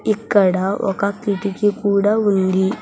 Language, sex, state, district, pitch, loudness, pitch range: Telugu, male, Telangana, Hyderabad, 200 Hz, -18 LUFS, 195-205 Hz